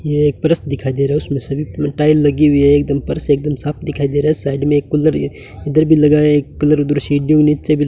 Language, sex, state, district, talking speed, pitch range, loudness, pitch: Hindi, male, Rajasthan, Bikaner, 250 wpm, 140-150 Hz, -15 LUFS, 145 Hz